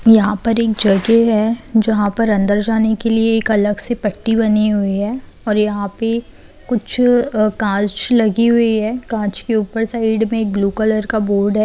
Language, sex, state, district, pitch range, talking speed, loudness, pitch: Hindi, female, Bihar, Saran, 210-230 Hz, 185 wpm, -16 LUFS, 220 Hz